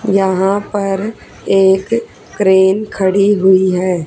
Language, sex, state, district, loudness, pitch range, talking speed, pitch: Hindi, female, Haryana, Charkhi Dadri, -13 LUFS, 190-205 Hz, 105 wpm, 195 Hz